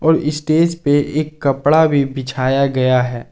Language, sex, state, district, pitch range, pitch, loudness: Hindi, male, Jharkhand, Garhwa, 135-155 Hz, 145 Hz, -16 LUFS